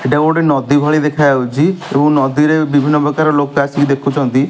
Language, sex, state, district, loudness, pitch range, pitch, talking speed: Odia, male, Odisha, Malkangiri, -13 LUFS, 140-150 Hz, 145 Hz, 175 wpm